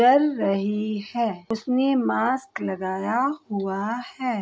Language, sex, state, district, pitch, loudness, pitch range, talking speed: Hindi, female, Bihar, Begusarai, 230 Hz, -25 LUFS, 200-255 Hz, 110 wpm